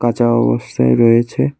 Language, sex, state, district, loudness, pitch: Bengali, male, Tripura, West Tripura, -14 LUFS, 115 Hz